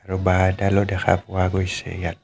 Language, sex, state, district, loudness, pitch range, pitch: Assamese, male, Assam, Kamrup Metropolitan, -21 LUFS, 95-100 Hz, 95 Hz